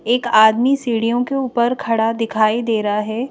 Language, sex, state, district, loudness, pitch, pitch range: Hindi, female, Madhya Pradesh, Bhopal, -17 LUFS, 230 Hz, 220-245 Hz